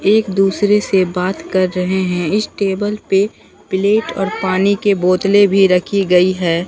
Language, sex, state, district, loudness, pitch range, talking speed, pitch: Hindi, female, Bihar, Katihar, -15 LUFS, 185-205 Hz, 170 wpm, 195 Hz